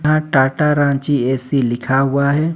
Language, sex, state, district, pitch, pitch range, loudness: Hindi, male, Jharkhand, Ranchi, 140 Hz, 135-150 Hz, -16 LUFS